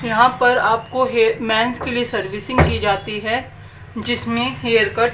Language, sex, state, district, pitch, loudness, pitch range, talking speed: Hindi, female, Haryana, Rohtak, 230 Hz, -18 LUFS, 220-245 Hz, 185 wpm